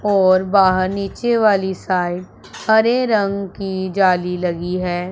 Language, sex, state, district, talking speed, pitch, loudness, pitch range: Hindi, male, Punjab, Pathankot, 130 wpm, 190 Hz, -17 LUFS, 180-200 Hz